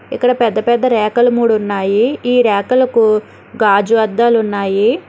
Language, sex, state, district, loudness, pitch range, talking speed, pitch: Telugu, female, Telangana, Hyderabad, -13 LUFS, 210-240 Hz, 130 wpm, 230 Hz